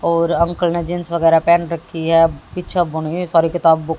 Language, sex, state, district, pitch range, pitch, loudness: Hindi, female, Haryana, Jhajjar, 165-175 Hz, 170 Hz, -16 LUFS